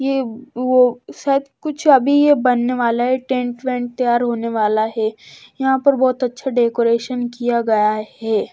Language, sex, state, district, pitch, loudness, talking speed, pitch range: Hindi, female, Bihar, West Champaran, 245 Hz, -18 LUFS, 170 wpm, 235-265 Hz